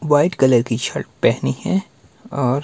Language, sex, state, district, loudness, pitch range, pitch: Hindi, male, Himachal Pradesh, Shimla, -19 LUFS, 125-170 Hz, 140 Hz